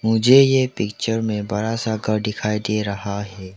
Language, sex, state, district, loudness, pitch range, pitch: Hindi, male, Arunachal Pradesh, Lower Dibang Valley, -20 LUFS, 105-115 Hz, 105 Hz